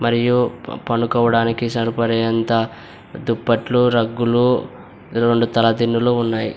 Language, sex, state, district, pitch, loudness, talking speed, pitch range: Telugu, male, Andhra Pradesh, Anantapur, 115 Hz, -18 LUFS, 80 wpm, 115-120 Hz